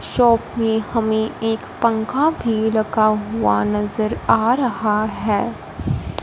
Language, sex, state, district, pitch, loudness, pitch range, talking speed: Hindi, female, Punjab, Fazilka, 220 Hz, -19 LUFS, 215-230 Hz, 115 wpm